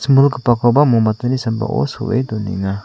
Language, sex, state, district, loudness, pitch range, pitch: Garo, male, Meghalaya, South Garo Hills, -16 LUFS, 110-130 Hz, 120 Hz